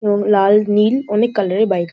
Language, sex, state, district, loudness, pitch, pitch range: Bengali, female, West Bengal, Jhargram, -15 LUFS, 210 Hz, 200-215 Hz